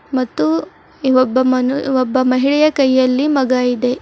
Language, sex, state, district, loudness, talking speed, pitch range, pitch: Kannada, female, Karnataka, Bidar, -15 LUFS, 135 wpm, 255-270 Hz, 260 Hz